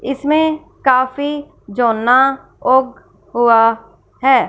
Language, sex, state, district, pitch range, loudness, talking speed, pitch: Hindi, female, Punjab, Fazilka, 240-275 Hz, -15 LUFS, 95 wpm, 260 Hz